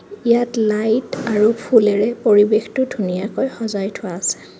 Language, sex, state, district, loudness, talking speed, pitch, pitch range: Assamese, female, Assam, Kamrup Metropolitan, -18 LUFS, 115 wpm, 215 Hz, 205-240 Hz